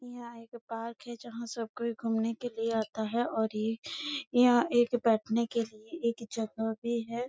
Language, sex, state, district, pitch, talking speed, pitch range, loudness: Hindi, female, Chhattisgarh, Bastar, 230 Hz, 180 wpm, 225-240 Hz, -31 LUFS